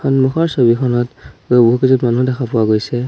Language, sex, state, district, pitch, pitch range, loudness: Assamese, male, Assam, Sonitpur, 125 Hz, 120-130 Hz, -14 LUFS